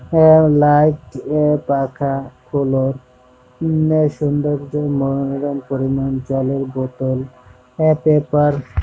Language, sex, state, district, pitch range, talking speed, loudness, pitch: Bengali, male, West Bengal, Jalpaiguri, 130-150 Hz, 70 wpm, -17 LUFS, 140 Hz